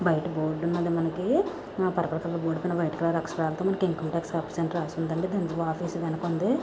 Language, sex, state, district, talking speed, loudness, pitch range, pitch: Telugu, female, Andhra Pradesh, Visakhapatnam, 180 wpm, -28 LUFS, 165-180 Hz, 170 Hz